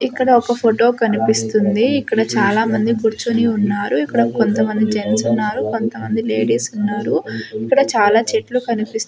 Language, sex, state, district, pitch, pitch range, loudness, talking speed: Telugu, female, Andhra Pradesh, Sri Satya Sai, 220 Hz, 200-235 Hz, -17 LUFS, 140 wpm